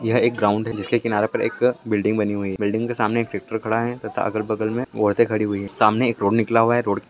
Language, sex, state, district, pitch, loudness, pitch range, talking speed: Hindi, male, Bihar, Purnia, 110 Hz, -21 LUFS, 105-115 Hz, 320 wpm